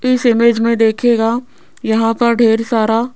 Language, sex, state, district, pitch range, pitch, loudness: Hindi, female, Rajasthan, Jaipur, 225-240 Hz, 230 Hz, -14 LUFS